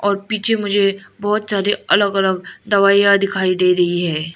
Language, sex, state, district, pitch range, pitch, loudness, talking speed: Hindi, female, Arunachal Pradesh, Lower Dibang Valley, 185-205 Hz, 200 Hz, -16 LUFS, 150 wpm